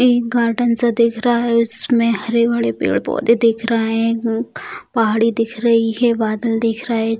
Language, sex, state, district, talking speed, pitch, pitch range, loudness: Hindi, female, Bihar, Bhagalpur, 160 wpm, 230 Hz, 225-235 Hz, -16 LUFS